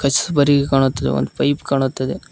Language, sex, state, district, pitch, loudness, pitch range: Kannada, male, Karnataka, Koppal, 135 Hz, -18 LUFS, 130-145 Hz